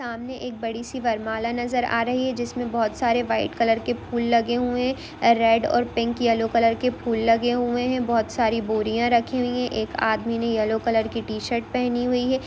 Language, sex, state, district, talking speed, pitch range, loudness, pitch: Hindi, female, Bihar, East Champaran, 215 wpm, 230-245 Hz, -23 LUFS, 235 Hz